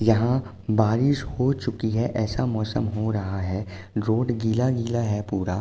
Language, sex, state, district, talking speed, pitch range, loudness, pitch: Hindi, male, Uttar Pradesh, Jalaun, 160 wpm, 105-120 Hz, -25 LUFS, 110 Hz